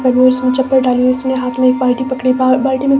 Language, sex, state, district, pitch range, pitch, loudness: Hindi, female, Himachal Pradesh, Shimla, 255-260 Hz, 255 Hz, -13 LUFS